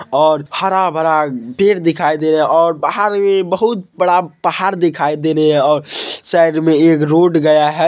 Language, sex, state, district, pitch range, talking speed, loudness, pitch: Hindi, male, Bihar, Madhepura, 155-190 Hz, 180 wpm, -14 LUFS, 165 Hz